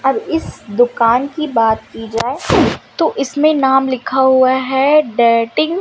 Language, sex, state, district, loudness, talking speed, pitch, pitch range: Hindi, female, Madhya Pradesh, Umaria, -14 LUFS, 155 wpm, 260 Hz, 235-285 Hz